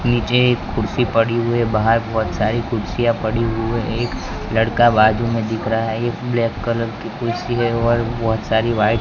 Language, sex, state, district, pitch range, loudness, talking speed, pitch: Hindi, male, Gujarat, Gandhinagar, 110-120 Hz, -19 LUFS, 205 wpm, 115 Hz